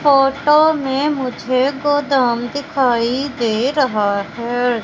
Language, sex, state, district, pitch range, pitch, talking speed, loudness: Hindi, female, Madhya Pradesh, Katni, 240-285 Hz, 260 Hz, 100 wpm, -17 LUFS